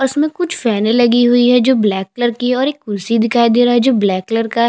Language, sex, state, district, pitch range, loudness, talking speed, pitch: Hindi, female, Chhattisgarh, Jashpur, 225-250 Hz, -14 LUFS, 295 wpm, 240 Hz